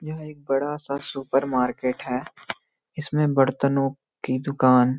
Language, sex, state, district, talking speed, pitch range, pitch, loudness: Hindi, male, Uttarakhand, Uttarkashi, 130 wpm, 130-145 Hz, 135 Hz, -24 LUFS